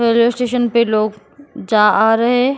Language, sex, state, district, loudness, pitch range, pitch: Hindi, female, Goa, North and South Goa, -15 LUFS, 220-245 Hz, 235 Hz